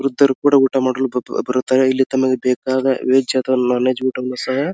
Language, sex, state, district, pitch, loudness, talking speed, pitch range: Kannada, male, Karnataka, Dharwad, 130 Hz, -17 LUFS, 190 wpm, 130-135 Hz